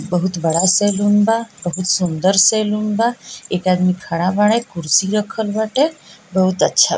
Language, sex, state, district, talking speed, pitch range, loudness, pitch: Bhojpuri, female, Bihar, East Champaran, 145 wpm, 180-215 Hz, -16 LUFS, 195 Hz